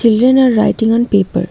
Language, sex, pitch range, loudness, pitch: English, female, 210-240 Hz, -12 LUFS, 225 Hz